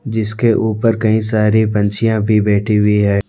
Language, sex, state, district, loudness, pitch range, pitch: Hindi, male, Jharkhand, Deoghar, -14 LUFS, 105-110 Hz, 110 Hz